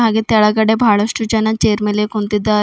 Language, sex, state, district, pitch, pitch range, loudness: Kannada, female, Karnataka, Bidar, 215 Hz, 210-220 Hz, -15 LUFS